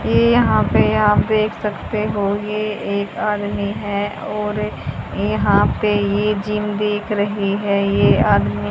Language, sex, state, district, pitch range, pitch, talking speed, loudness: Hindi, female, Haryana, Rohtak, 200-210 Hz, 205 Hz, 150 wpm, -18 LUFS